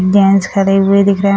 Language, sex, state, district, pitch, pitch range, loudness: Hindi, female, Bihar, Sitamarhi, 195 Hz, 195-200 Hz, -11 LUFS